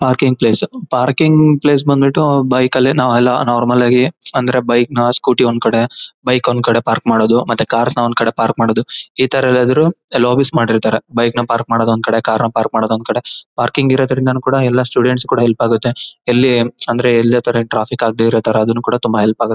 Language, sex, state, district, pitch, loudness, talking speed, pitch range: Kannada, male, Karnataka, Bellary, 120 Hz, -13 LUFS, 195 wpm, 115-130 Hz